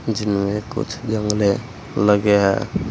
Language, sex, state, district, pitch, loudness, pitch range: Hindi, male, Uttar Pradesh, Saharanpur, 105 Hz, -20 LUFS, 100-110 Hz